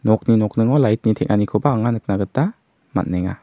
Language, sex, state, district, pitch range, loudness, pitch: Garo, male, Meghalaya, South Garo Hills, 105-130 Hz, -19 LUFS, 110 Hz